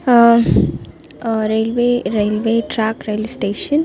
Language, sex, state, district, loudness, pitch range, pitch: Kannada, female, Karnataka, Dakshina Kannada, -16 LUFS, 220-240 Hz, 230 Hz